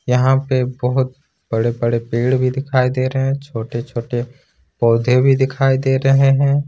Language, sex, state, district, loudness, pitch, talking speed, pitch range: Hindi, male, Jharkhand, Ranchi, -17 LUFS, 130 Hz, 155 wpm, 120-135 Hz